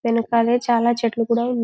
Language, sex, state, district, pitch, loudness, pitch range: Telugu, female, Telangana, Karimnagar, 235 Hz, -19 LUFS, 230-240 Hz